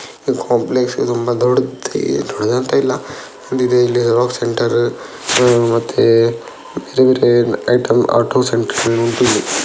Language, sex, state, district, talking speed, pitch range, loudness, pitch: Kannada, male, Karnataka, Dakshina Kannada, 95 wpm, 115-125 Hz, -15 LUFS, 120 Hz